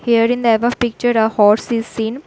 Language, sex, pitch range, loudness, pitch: English, female, 220-240 Hz, -15 LUFS, 230 Hz